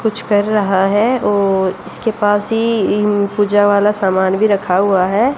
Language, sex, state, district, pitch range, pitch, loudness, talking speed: Hindi, female, Haryana, Jhajjar, 195-215 Hz, 205 Hz, -14 LUFS, 180 wpm